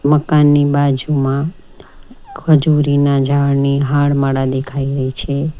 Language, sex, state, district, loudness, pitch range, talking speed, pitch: Gujarati, female, Gujarat, Valsad, -15 LUFS, 140-150 Hz, 85 wpm, 140 Hz